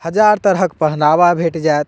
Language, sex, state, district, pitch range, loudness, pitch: Maithili, male, Bihar, Purnia, 155-185 Hz, -14 LUFS, 165 Hz